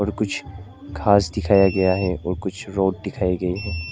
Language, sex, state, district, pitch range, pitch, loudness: Hindi, male, Arunachal Pradesh, Lower Dibang Valley, 90-100 Hz, 95 Hz, -21 LUFS